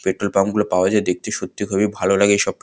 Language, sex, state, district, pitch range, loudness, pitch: Bengali, male, West Bengal, Kolkata, 95-105 Hz, -19 LUFS, 100 Hz